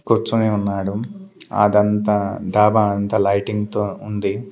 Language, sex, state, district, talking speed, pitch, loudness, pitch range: Telugu, male, Andhra Pradesh, Sri Satya Sai, 105 wpm, 105 Hz, -19 LUFS, 100-110 Hz